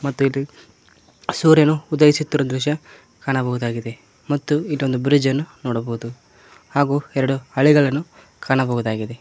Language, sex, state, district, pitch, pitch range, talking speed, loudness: Kannada, male, Karnataka, Koppal, 135 Hz, 125-150 Hz, 100 wpm, -19 LUFS